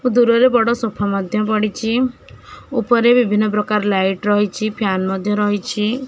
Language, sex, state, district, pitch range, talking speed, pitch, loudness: Odia, female, Odisha, Khordha, 205-235 Hz, 140 wpm, 215 Hz, -17 LUFS